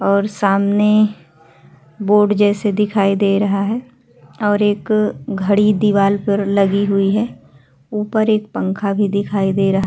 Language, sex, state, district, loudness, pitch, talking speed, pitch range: Hindi, female, Uttar Pradesh, Hamirpur, -16 LUFS, 200 Hz, 145 wpm, 195-210 Hz